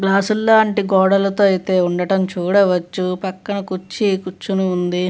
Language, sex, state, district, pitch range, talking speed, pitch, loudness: Telugu, female, Andhra Pradesh, Visakhapatnam, 185-200 Hz, 105 wpm, 190 Hz, -17 LUFS